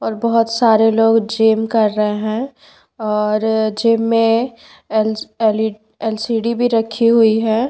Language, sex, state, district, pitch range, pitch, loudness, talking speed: Hindi, female, Bihar, Patna, 220-230 Hz, 225 Hz, -16 LUFS, 150 wpm